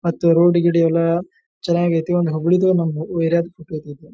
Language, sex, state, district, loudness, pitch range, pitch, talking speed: Kannada, male, Karnataka, Dharwad, -18 LUFS, 165-175 Hz, 170 Hz, 130 wpm